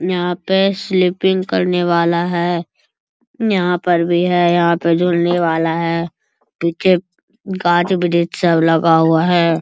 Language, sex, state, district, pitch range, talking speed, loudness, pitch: Hindi, male, Bihar, Bhagalpur, 170-185 Hz, 150 wpm, -15 LUFS, 175 Hz